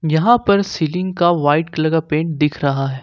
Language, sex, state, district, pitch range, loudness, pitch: Hindi, male, Jharkhand, Ranchi, 150-175 Hz, -17 LUFS, 160 Hz